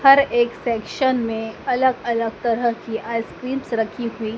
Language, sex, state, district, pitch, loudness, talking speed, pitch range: Hindi, female, Madhya Pradesh, Dhar, 235 Hz, -21 LUFS, 150 wpm, 225-255 Hz